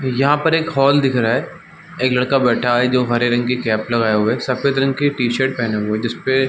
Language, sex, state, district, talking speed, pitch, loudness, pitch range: Hindi, male, Chhattisgarh, Bilaspur, 270 wpm, 125 Hz, -17 LUFS, 120-135 Hz